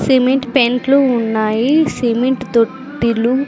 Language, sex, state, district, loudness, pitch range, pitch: Telugu, female, Andhra Pradesh, Sri Satya Sai, -15 LUFS, 235-270 Hz, 255 Hz